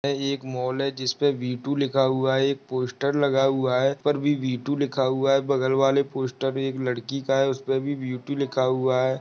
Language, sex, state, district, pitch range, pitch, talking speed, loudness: Hindi, male, Maharashtra, Pune, 130-140 Hz, 135 Hz, 215 wpm, -24 LUFS